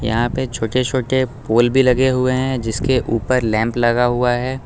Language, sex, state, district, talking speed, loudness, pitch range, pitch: Hindi, male, Uttar Pradesh, Lucknow, 195 wpm, -17 LUFS, 120-130 Hz, 125 Hz